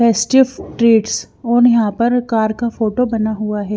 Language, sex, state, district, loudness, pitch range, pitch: Hindi, female, Haryana, Jhajjar, -15 LUFS, 220-245 Hz, 230 Hz